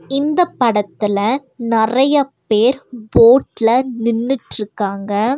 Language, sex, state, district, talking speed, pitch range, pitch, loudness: Tamil, female, Tamil Nadu, Nilgiris, 65 wpm, 215-270 Hz, 235 Hz, -16 LUFS